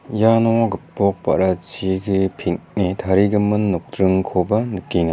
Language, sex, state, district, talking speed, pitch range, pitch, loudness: Garo, male, Meghalaya, West Garo Hills, 80 wpm, 95-105 Hz, 95 Hz, -19 LUFS